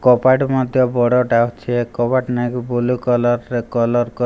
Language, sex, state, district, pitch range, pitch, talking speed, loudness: Odia, male, Odisha, Malkangiri, 120-125 Hz, 120 Hz, 155 wpm, -17 LUFS